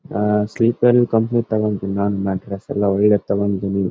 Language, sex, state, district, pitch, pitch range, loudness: Kannada, male, Karnataka, Bellary, 105 Hz, 100-115 Hz, -18 LUFS